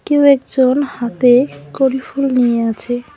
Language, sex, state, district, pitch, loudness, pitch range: Bengali, female, West Bengal, Cooch Behar, 255 Hz, -15 LUFS, 240-275 Hz